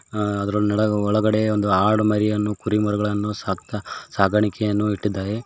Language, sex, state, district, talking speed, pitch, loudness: Kannada, male, Karnataka, Koppal, 110 wpm, 105 Hz, -21 LUFS